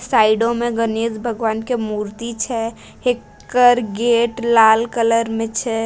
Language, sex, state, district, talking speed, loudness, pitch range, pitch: Hindi, female, Bihar, Bhagalpur, 135 wpm, -18 LUFS, 225-235 Hz, 230 Hz